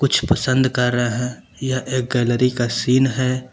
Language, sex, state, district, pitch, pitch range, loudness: Hindi, male, Uttar Pradesh, Lucknow, 130 Hz, 125-130 Hz, -19 LUFS